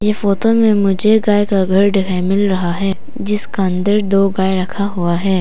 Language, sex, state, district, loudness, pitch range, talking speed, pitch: Hindi, female, Arunachal Pradesh, Papum Pare, -15 LUFS, 190-205 Hz, 190 wpm, 195 Hz